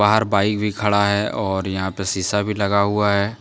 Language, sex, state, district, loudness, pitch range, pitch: Hindi, male, Jharkhand, Deoghar, -20 LUFS, 100-105 Hz, 100 Hz